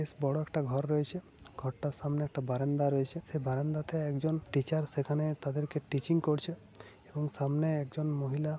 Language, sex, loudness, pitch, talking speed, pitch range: Odia, male, -33 LUFS, 150 Hz, 175 wpm, 140-155 Hz